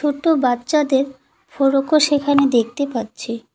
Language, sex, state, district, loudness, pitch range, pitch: Bengali, female, West Bengal, Cooch Behar, -18 LUFS, 255-295 Hz, 280 Hz